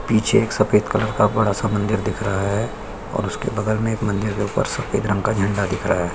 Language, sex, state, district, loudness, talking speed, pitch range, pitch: Hindi, male, Chhattisgarh, Sukma, -21 LUFS, 255 wpm, 100-110 Hz, 105 Hz